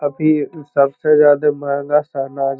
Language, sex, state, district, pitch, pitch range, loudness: Magahi, male, Bihar, Lakhisarai, 145 Hz, 140-150 Hz, -16 LUFS